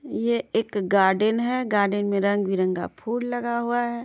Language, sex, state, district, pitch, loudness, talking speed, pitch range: Hindi, female, Bihar, Madhepura, 225 Hz, -24 LUFS, 180 wpm, 200-240 Hz